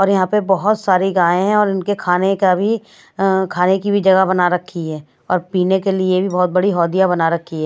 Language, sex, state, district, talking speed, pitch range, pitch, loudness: Hindi, female, Maharashtra, Washim, 235 wpm, 180-195 Hz, 185 Hz, -16 LUFS